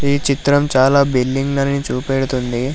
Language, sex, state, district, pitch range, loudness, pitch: Telugu, male, Telangana, Hyderabad, 130-140 Hz, -16 LUFS, 135 Hz